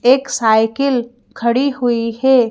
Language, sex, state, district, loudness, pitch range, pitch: Hindi, female, Madhya Pradesh, Bhopal, -15 LUFS, 230-265 Hz, 240 Hz